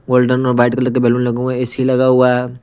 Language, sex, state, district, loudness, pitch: Hindi, male, Punjab, Pathankot, -14 LUFS, 125 Hz